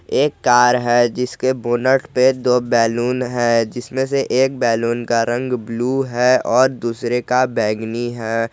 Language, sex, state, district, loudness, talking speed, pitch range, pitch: Hindi, male, Jharkhand, Garhwa, -17 LUFS, 155 wpm, 120-130 Hz, 125 Hz